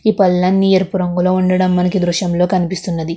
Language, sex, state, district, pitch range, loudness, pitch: Telugu, female, Andhra Pradesh, Krishna, 180-185 Hz, -15 LUFS, 185 Hz